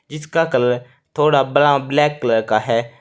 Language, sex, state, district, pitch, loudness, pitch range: Hindi, male, Uttar Pradesh, Saharanpur, 135 Hz, -17 LUFS, 120-150 Hz